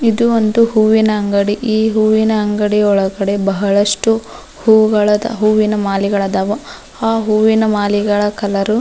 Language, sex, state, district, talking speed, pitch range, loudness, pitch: Kannada, female, Karnataka, Dharwad, 115 wpm, 205-220 Hz, -14 LUFS, 215 Hz